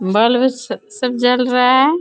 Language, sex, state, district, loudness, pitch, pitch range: Hindi, female, Bihar, Bhagalpur, -15 LUFS, 250 Hz, 245-255 Hz